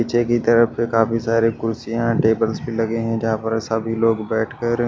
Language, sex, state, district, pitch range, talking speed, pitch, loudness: Hindi, male, Odisha, Malkangiri, 110-115 Hz, 210 wpm, 115 Hz, -20 LUFS